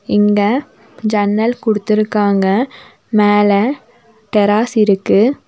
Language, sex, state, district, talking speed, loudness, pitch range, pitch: Tamil, female, Tamil Nadu, Nilgiris, 65 wpm, -14 LUFS, 205-230 Hz, 215 Hz